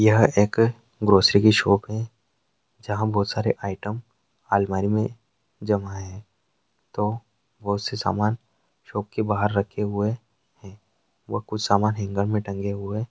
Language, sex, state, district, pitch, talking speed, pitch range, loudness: Hindi, male, Bihar, Araria, 105 Hz, 135 wpm, 100-110 Hz, -23 LUFS